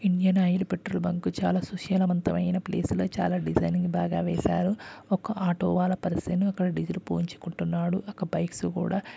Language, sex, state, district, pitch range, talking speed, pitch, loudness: Telugu, male, Andhra Pradesh, Guntur, 170-190 Hz, 155 wpm, 180 Hz, -28 LUFS